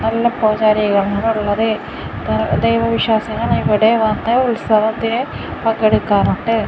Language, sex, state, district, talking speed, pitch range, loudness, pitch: Malayalam, female, Kerala, Kasaragod, 90 wpm, 200-225 Hz, -16 LUFS, 215 Hz